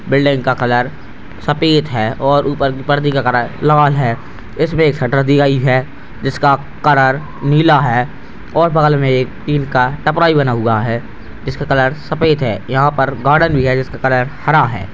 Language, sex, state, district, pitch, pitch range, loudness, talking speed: Hindi, male, Bihar, Purnia, 135 Hz, 125-145 Hz, -14 LUFS, 180 wpm